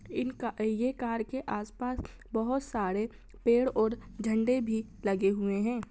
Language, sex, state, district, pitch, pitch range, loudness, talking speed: Hindi, female, Bihar, Sitamarhi, 225 Hz, 215-245 Hz, -31 LUFS, 140 wpm